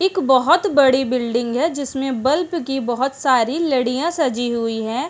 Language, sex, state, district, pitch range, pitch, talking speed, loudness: Hindi, female, Uttarakhand, Uttarkashi, 245-305 Hz, 265 Hz, 165 wpm, -18 LUFS